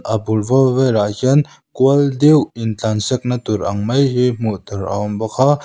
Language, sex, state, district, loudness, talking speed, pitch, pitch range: Mizo, male, Mizoram, Aizawl, -16 LUFS, 220 wpm, 125 Hz, 105-135 Hz